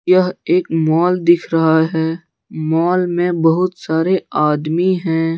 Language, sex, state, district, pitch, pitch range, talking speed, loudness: Hindi, male, Jharkhand, Deoghar, 165 Hz, 160-180 Hz, 135 wpm, -16 LUFS